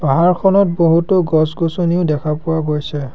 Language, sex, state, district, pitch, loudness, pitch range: Assamese, male, Assam, Sonitpur, 165 Hz, -15 LUFS, 150-175 Hz